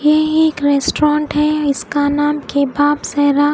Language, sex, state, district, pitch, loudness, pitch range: Hindi, female, Odisha, Khordha, 290 Hz, -15 LUFS, 285-300 Hz